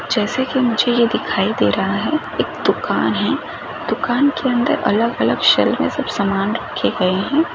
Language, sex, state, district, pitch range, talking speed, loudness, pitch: Hindi, female, Rajasthan, Nagaur, 215-260 Hz, 185 wpm, -18 LUFS, 240 Hz